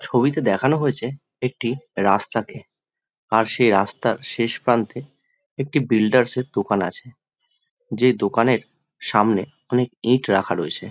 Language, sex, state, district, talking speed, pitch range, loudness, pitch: Bengali, male, West Bengal, Jhargram, 120 wpm, 105-135 Hz, -21 LUFS, 120 Hz